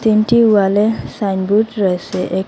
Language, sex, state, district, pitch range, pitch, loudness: Bengali, female, Assam, Hailakandi, 190-220 Hz, 210 Hz, -15 LUFS